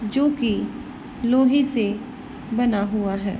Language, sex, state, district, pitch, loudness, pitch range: Hindi, female, Uttar Pradesh, Varanasi, 245 Hz, -22 LUFS, 215-265 Hz